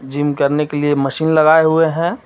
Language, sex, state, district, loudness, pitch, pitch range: Hindi, male, Jharkhand, Ranchi, -15 LUFS, 150 Hz, 145-160 Hz